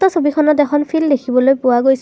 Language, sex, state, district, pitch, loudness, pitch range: Assamese, female, Assam, Kamrup Metropolitan, 290 Hz, -14 LUFS, 260-305 Hz